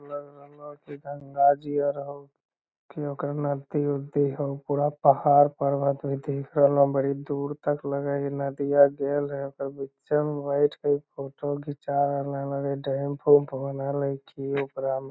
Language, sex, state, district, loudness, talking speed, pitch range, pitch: Magahi, male, Bihar, Lakhisarai, -26 LUFS, 185 wpm, 140-145 Hz, 140 Hz